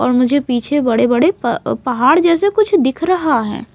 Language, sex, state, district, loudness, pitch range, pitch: Hindi, female, Maharashtra, Mumbai Suburban, -14 LUFS, 245-340 Hz, 275 Hz